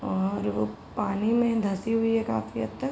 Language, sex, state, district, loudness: Hindi, female, Uttar Pradesh, Gorakhpur, -27 LUFS